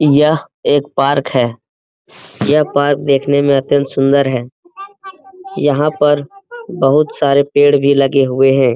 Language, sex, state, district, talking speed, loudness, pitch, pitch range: Hindi, male, Bihar, Jamui, 155 wpm, -13 LUFS, 145 Hz, 135-150 Hz